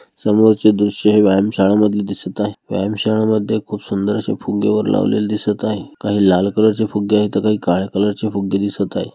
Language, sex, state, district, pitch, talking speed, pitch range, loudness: Marathi, male, Maharashtra, Dhule, 105 Hz, 195 wpm, 100-105 Hz, -17 LUFS